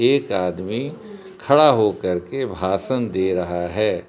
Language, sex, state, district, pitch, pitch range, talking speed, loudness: Hindi, male, Jharkhand, Palamu, 105 Hz, 90-140 Hz, 145 wpm, -20 LUFS